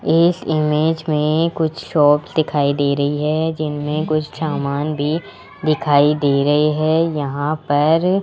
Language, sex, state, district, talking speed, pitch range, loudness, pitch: Hindi, male, Rajasthan, Jaipur, 145 wpm, 145-160 Hz, -18 LUFS, 150 Hz